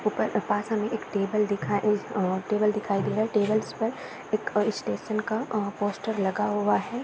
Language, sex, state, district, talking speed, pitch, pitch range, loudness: Hindi, female, Uttar Pradesh, Varanasi, 180 wpm, 210 Hz, 205-220 Hz, -27 LUFS